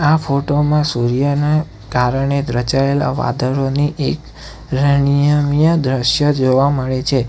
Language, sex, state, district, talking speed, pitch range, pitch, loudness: Gujarati, male, Gujarat, Valsad, 105 wpm, 130-145 Hz, 140 Hz, -16 LUFS